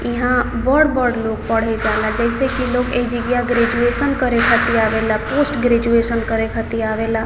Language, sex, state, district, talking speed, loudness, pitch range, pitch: Maithili, female, Bihar, Samastipur, 165 wpm, -17 LUFS, 225-250 Hz, 235 Hz